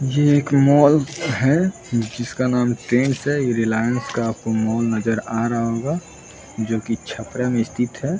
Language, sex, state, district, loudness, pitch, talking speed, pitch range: Hindi, male, Bihar, Saran, -20 LUFS, 120 Hz, 170 wpm, 115-140 Hz